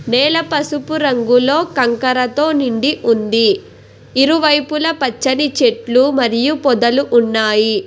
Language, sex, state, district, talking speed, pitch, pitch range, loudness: Telugu, female, Telangana, Hyderabad, 90 wpm, 265 Hz, 235-295 Hz, -14 LUFS